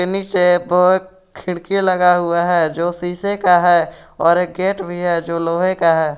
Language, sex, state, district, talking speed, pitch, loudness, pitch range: Hindi, male, Jharkhand, Garhwa, 185 wpm, 175 Hz, -16 LUFS, 170-185 Hz